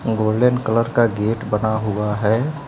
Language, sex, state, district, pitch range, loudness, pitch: Hindi, male, Uttar Pradesh, Lucknow, 105-120 Hz, -19 LUFS, 110 Hz